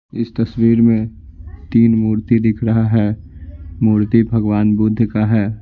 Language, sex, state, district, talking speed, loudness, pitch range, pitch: Hindi, male, Bihar, Patna, 140 wpm, -15 LUFS, 105-115 Hz, 110 Hz